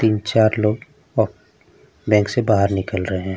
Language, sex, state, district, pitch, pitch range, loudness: Hindi, male, Bihar, Vaishali, 105 Hz, 95-110 Hz, -19 LUFS